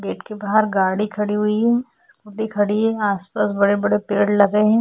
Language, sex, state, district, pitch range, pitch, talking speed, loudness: Hindi, female, Goa, North and South Goa, 205-215 Hz, 210 Hz, 200 wpm, -19 LUFS